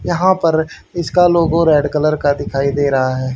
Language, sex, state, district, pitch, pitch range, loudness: Hindi, female, Haryana, Charkhi Dadri, 155 Hz, 140-170 Hz, -15 LUFS